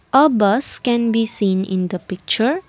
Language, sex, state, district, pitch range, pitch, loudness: English, female, Assam, Kamrup Metropolitan, 190-245 Hz, 225 Hz, -17 LUFS